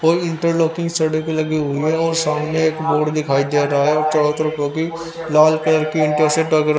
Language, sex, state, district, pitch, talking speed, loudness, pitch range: Hindi, male, Haryana, Rohtak, 155 Hz, 195 wpm, -18 LUFS, 150-160 Hz